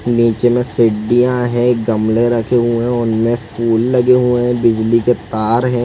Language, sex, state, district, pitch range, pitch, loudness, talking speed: Hindi, male, Chhattisgarh, Sarguja, 115-120 Hz, 120 Hz, -14 LUFS, 175 wpm